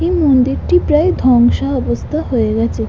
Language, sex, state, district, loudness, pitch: Bengali, female, West Bengal, Jhargram, -14 LUFS, 255 Hz